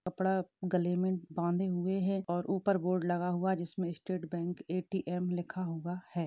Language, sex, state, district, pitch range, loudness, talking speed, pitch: Hindi, female, Uttar Pradesh, Hamirpur, 175-185 Hz, -34 LUFS, 180 wpm, 180 Hz